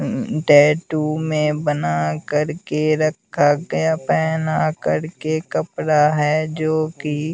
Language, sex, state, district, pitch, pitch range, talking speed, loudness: Hindi, male, Bihar, West Champaran, 150 Hz, 145-155 Hz, 105 wpm, -19 LUFS